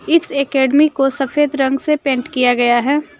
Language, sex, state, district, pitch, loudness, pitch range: Hindi, female, Jharkhand, Deoghar, 275 Hz, -15 LUFS, 265-295 Hz